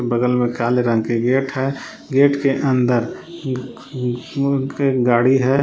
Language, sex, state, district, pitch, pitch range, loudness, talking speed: Hindi, male, Jharkhand, Palamu, 130 Hz, 120-135 Hz, -18 LUFS, 160 wpm